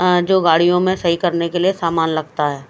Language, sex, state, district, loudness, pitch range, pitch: Hindi, female, Himachal Pradesh, Shimla, -16 LUFS, 160-180 Hz, 170 Hz